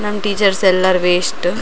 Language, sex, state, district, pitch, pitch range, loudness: Kannada, female, Karnataka, Raichur, 190 Hz, 180-205 Hz, -15 LUFS